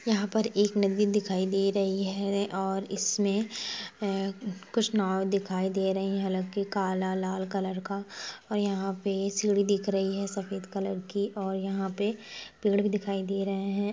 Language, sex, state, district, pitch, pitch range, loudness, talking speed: Hindi, female, Chhattisgarh, Rajnandgaon, 195 Hz, 195-205 Hz, -30 LUFS, 175 wpm